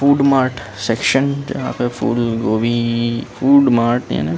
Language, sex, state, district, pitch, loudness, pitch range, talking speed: Chhattisgarhi, male, Chhattisgarh, Rajnandgaon, 120 Hz, -16 LUFS, 115-135 Hz, 135 wpm